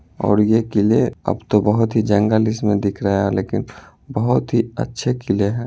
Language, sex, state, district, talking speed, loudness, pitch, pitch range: Hindi, male, Bihar, Muzaffarpur, 200 wpm, -18 LUFS, 105 Hz, 100-115 Hz